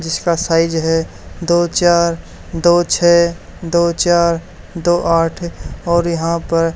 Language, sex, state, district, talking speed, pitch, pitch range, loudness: Hindi, male, Haryana, Charkhi Dadri, 125 wpm, 170 Hz, 165-175 Hz, -15 LUFS